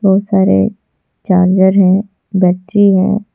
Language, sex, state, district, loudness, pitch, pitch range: Hindi, female, Jharkhand, Deoghar, -12 LUFS, 190 Hz, 185-200 Hz